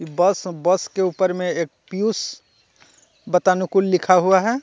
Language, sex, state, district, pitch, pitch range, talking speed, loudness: Hindi, male, Jharkhand, Ranchi, 185 Hz, 180-190 Hz, 130 wpm, -20 LUFS